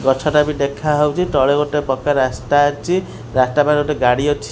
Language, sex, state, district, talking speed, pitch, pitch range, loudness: Odia, male, Odisha, Khordha, 200 wpm, 145 Hz, 135-150 Hz, -17 LUFS